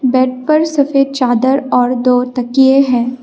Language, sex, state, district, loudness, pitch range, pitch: Hindi, female, Assam, Kamrup Metropolitan, -12 LUFS, 250-275 Hz, 255 Hz